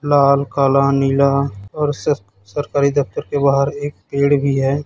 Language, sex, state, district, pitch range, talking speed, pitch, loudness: Hindi, male, Chhattisgarh, Raipur, 140-145 Hz, 160 wpm, 140 Hz, -17 LUFS